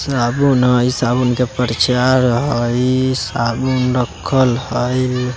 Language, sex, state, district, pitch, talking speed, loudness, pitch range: Bajjika, male, Bihar, Vaishali, 125 Hz, 100 wpm, -16 LUFS, 120-130 Hz